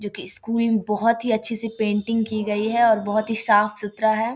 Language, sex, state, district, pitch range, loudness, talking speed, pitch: Maithili, female, Bihar, Samastipur, 210-225 Hz, -22 LUFS, 205 wpm, 220 Hz